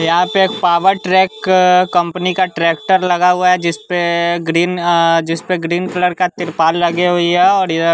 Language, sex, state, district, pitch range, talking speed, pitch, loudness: Hindi, male, Bihar, West Champaran, 170-185 Hz, 175 wpm, 175 Hz, -14 LUFS